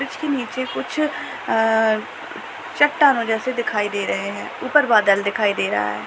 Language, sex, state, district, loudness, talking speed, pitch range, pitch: Hindi, female, Uttar Pradesh, Jyotiba Phule Nagar, -20 LUFS, 160 wpm, 205-270 Hz, 225 Hz